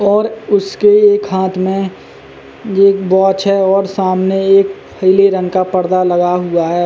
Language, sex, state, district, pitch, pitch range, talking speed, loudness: Hindi, male, Uttar Pradesh, Jalaun, 190 Hz, 185-195 Hz, 155 wpm, -12 LUFS